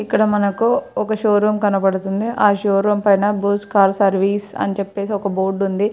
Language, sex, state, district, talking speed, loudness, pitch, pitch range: Telugu, female, Andhra Pradesh, Srikakulam, 160 wpm, -17 LUFS, 200 Hz, 195-210 Hz